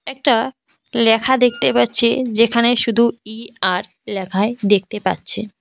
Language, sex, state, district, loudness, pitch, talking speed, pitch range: Bengali, female, West Bengal, Cooch Behar, -17 LUFS, 230 Hz, 105 wpm, 210-240 Hz